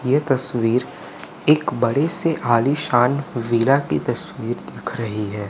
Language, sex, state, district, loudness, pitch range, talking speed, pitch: Hindi, male, Madhya Pradesh, Umaria, -20 LUFS, 115-140 Hz, 130 wpm, 125 Hz